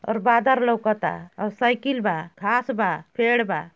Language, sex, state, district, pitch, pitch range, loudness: Bhojpuri, female, Uttar Pradesh, Ghazipur, 225 Hz, 190-240 Hz, -22 LUFS